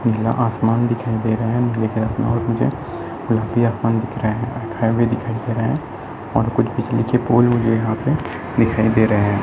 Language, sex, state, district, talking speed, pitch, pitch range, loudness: Hindi, male, Chhattisgarh, Sarguja, 120 wpm, 115 Hz, 110-120 Hz, -19 LUFS